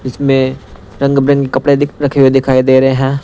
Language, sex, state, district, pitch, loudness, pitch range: Hindi, male, Punjab, Pathankot, 135 Hz, -11 LUFS, 130-140 Hz